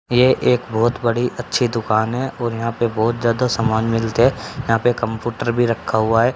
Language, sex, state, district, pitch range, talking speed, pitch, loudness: Hindi, male, Haryana, Charkhi Dadri, 115-125 Hz, 210 wpm, 120 Hz, -19 LUFS